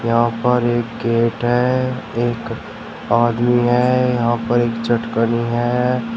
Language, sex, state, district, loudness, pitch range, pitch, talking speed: Hindi, male, Uttar Pradesh, Shamli, -18 LUFS, 115-120 Hz, 120 Hz, 125 wpm